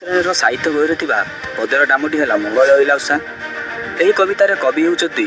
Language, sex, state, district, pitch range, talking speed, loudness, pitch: Odia, male, Odisha, Malkangiri, 150-180 Hz, 135 wpm, -15 LUFS, 165 Hz